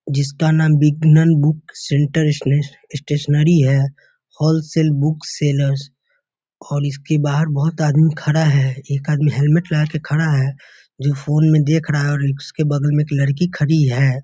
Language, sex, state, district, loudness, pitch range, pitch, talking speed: Hindi, male, Bihar, Muzaffarpur, -17 LUFS, 140-155 Hz, 150 Hz, 165 wpm